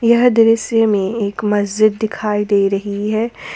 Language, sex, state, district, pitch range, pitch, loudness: Hindi, female, Jharkhand, Ranchi, 205-225 Hz, 215 Hz, -16 LUFS